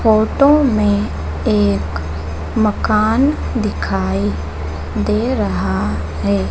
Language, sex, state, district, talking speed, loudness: Hindi, female, Madhya Pradesh, Dhar, 75 wpm, -17 LUFS